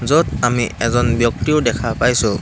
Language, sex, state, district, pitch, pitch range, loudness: Assamese, male, Assam, Hailakandi, 120 Hz, 115-125 Hz, -17 LUFS